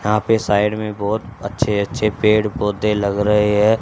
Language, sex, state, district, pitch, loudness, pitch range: Hindi, male, Haryana, Charkhi Dadri, 105 Hz, -18 LUFS, 105-110 Hz